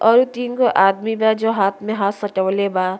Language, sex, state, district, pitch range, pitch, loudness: Bhojpuri, female, Uttar Pradesh, Deoria, 195-225 Hz, 205 Hz, -18 LUFS